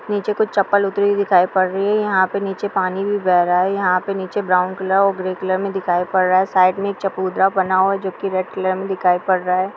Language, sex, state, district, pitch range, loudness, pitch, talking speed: Hindi, female, Bihar, Kishanganj, 185-200 Hz, -18 LUFS, 190 Hz, 260 wpm